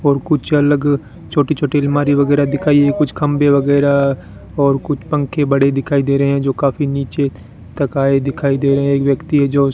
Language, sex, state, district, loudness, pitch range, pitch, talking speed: Hindi, male, Rajasthan, Bikaner, -15 LUFS, 140-145 Hz, 140 Hz, 205 wpm